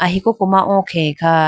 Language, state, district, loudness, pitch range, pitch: Idu Mishmi, Arunachal Pradesh, Lower Dibang Valley, -15 LUFS, 165-195 Hz, 180 Hz